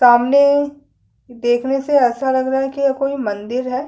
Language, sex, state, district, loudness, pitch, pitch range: Hindi, female, Chhattisgarh, Sukma, -17 LUFS, 265 Hz, 245-275 Hz